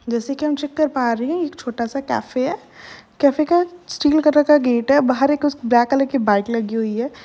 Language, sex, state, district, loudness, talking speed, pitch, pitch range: Hindi, female, Uttar Pradesh, Jalaun, -19 LUFS, 250 wpm, 275 Hz, 240-295 Hz